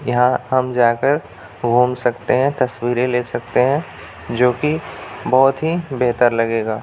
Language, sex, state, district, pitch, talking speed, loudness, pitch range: Hindi, male, Bihar, Jamui, 125 Hz, 150 wpm, -18 LUFS, 115-130 Hz